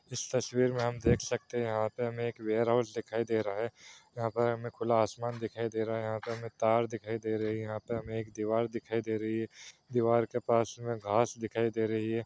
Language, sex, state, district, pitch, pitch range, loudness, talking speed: Hindi, male, Bihar, Saran, 115 Hz, 110-120 Hz, -33 LUFS, 235 wpm